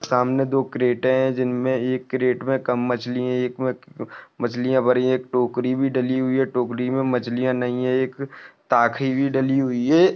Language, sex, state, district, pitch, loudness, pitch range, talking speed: Hindi, male, Maharashtra, Nagpur, 130 Hz, -22 LUFS, 125-130 Hz, 200 wpm